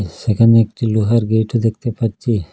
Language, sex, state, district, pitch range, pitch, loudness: Bengali, male, Assam, Hailakandi, 110-115 Hz, 115 Hz, -16 LUFS